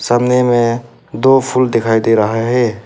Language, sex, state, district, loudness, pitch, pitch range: Hindi, male, Arunachal Pradesh, Papum Pare, -13 LUFS, 120 Hz, 115-125 Hz